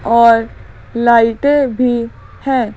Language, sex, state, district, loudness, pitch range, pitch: Hindi, female, Madhya Pradesh, Bhopal, -13 LUFS, 230-255 Hz, 235 Hz